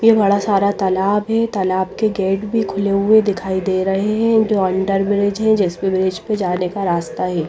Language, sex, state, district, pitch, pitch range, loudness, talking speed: Hindi, female, Bihar, Patna, 195 Hz, 190-210 Hz, -17 LUFS, 200 wpm